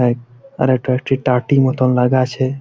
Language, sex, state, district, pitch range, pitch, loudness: Bengali, male, West Bengal, Malda, 125-135 Hz, 130 Hz, -16 LUFS